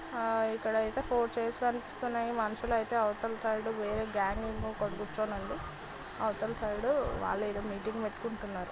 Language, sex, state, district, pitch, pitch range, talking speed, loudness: Telugu, female, Telangana, Nalgonda, 220 Hz, 210-230 Hz, 130 wpm, -34 LUFS